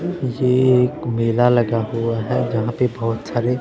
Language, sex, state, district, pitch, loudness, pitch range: Hindi, male, Punjab, Pathankot, 120 Hz, -19 LUFS, 115-125 Hz